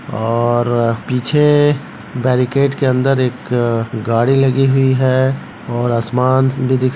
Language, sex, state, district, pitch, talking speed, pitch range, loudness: Hindi, male, Bihar, Begusarai, 130 Hz, 120 wpm, 120-135 Hz, -15 LUFS